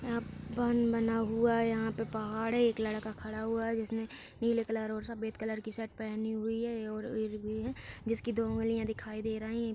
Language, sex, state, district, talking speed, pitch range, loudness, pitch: Hindi, female, Uttar Pradesh, Hamirpur, 215 wpm, 220-230 Hz, -34 LUFS, 225 Hz